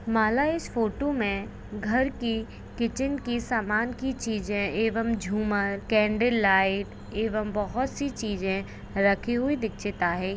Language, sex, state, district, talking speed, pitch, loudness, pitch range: Hindi, female, Maharashtra, Pune, 135 wpm, 220 Hz, -27 LUFS, 205-245 Hz